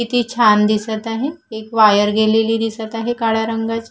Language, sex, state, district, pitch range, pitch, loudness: Marathi, female, Maharashtra, Solapur, 220-230 Hz, 225 Hz, -16 LUFS